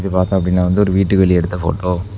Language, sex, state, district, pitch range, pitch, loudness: Tamil, male, Tamil Nadu, Namakkal, 90-95 Hz, 90 Hz, -15 LUFS